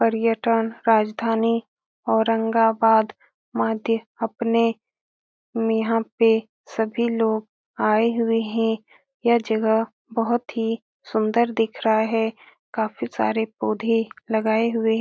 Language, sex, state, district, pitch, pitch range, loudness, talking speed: Hindi, female, Bihar, Lakhisarai, 225 Hz, 220-230 Hz, -22 LUFS, 110 wpm